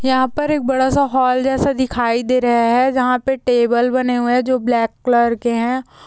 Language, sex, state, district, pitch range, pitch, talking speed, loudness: Hindi, female, Uttar Pradesh, Jyotiba Phule Nagar, 240-260 Hz, 255 Hz, 215 wpm, -16 LUFS